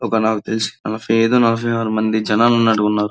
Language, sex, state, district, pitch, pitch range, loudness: Telugu, male, Andhra Pradesh, Srikakulam, 110 Hz, 110-115 Hz, -17 LUFS